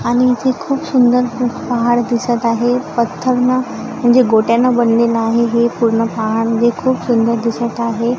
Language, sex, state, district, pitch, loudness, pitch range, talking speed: Marathi, female, Maharashtra, Gondia, 240 Hz, -15 LUFS, 230-250 Hz, 155 wpm